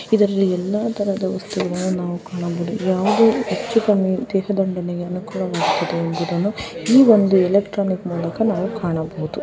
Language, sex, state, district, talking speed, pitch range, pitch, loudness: Kannada, female, Karnataka, Shimoga, 85 wpm, 175-205 Hz, 190 Hz, -19 LUFS